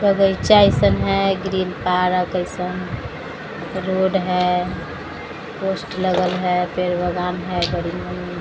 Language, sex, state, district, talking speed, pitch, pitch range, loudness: Hindi, female, Bihar, Patna, 55 wpm, 180 Hz, 180-190 Hz, -20 LUFS